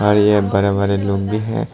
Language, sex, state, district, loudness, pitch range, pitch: Hindi, male, Tripura, Dhalai, -17 LUFS, 100-105 Hz, 100 Hz